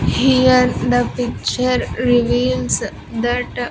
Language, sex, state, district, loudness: English, female, Andhra Pradesh, Sri Satya Sai, -17 LUFS